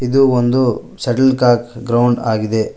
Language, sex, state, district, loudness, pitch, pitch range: Kannada, male, Karnataka, Koppal, -15 LUFS, 120 Hz, 120-125 Hz